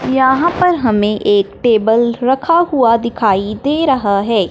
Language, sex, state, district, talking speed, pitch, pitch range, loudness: Hindi, male, Punjab, Fazilka, 145 wpm, 235 Hz, 210-270 Hz, -13 LUFS